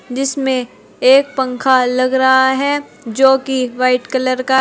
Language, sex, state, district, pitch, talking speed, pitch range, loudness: Hindi, female, Uttar Pradesh, Saharanpur, 260 Hz, 145 wpm, 255-265 Hz, -14 LUFS